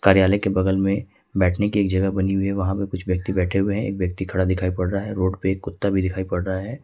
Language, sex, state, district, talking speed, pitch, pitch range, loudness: Hindi, male, Jharkhand, Ranchi, 300 wpm, 95 Hz, 95-100 Hz, -22 LUFS